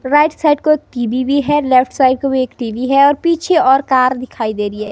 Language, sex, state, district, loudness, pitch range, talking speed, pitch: Hindi, female, Himachal Pradesh, Shimla, -14 LUFS, 255-295 Hz, 270 wpm, 265 Hz